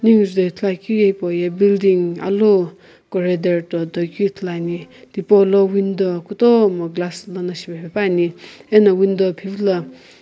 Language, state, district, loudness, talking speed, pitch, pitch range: Sumi, Nagaland, Kohima, -17 LUFS, 140 wpm, 190 Hz, 175-200 Hz